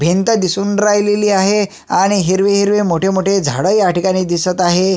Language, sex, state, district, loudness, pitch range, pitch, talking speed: Marathi, male, Maharashtra, Sindhudurg, -14 LUFS, 185-205 Hz, 190 Hz, 155 wpm